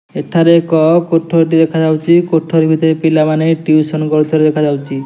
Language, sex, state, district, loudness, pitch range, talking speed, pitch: Odia, male, Odisha, Nuapada, -12 LUFS, 155-165 Hz, 140 wpm, 160 Hz